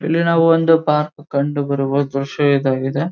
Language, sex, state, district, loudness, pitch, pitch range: Kannada, male, Karnataka, Dharwad, -17 LUFS, 145 Hz, 140-165 Hz